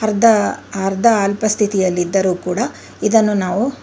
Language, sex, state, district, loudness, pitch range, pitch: Kannada, female, Karnataka, Bangalore, -16 LUFS, 190-220 Hz, 205 Hz